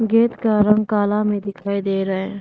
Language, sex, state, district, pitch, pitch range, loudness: Hindi, female, Arunachal Pradesh, Lower Dibang Valley, 205 Hz, 200-215 Hz, -19 LUFS